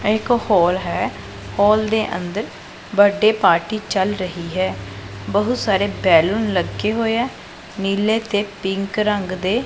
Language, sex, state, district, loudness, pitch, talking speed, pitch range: Punjabi, female, Punjab, Pathankot, -19 LUFS, 205 Hz, 145 wpm, 185-215 Hz